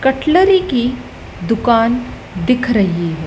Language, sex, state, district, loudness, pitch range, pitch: Hindi, female, Madhya Pradesh, Dhar, -15 LUFS, 215-265 Hz, 245 Hz